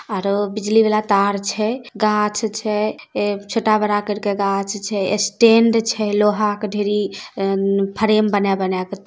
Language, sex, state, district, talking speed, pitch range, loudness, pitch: Maithili, female, Bihar, Samastipur, 145 wpm, 200-215 Hz, -18 LUFS, 210 Hz